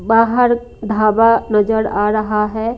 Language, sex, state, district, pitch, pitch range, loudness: Hindi, female, Haryana, Rohtak, 220 Hz, 215-230 Hz, -15 LUFS